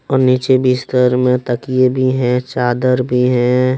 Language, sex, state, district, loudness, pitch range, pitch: Hindi, male, Jharkhand, Deoghar, -14 LUFS, 125-130 Hz, 125 Hz